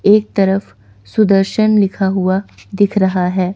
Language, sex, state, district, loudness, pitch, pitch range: Hindi, female, Chandigarh, Chandigarh, -15 LUFS, 195 Hz, 185-205 Hz